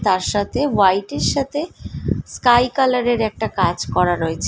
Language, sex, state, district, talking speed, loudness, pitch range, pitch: Bengali, female, West Bengal, Malda, 160 wpm, -18 LUFS, 190-260 Hz, 220 Hz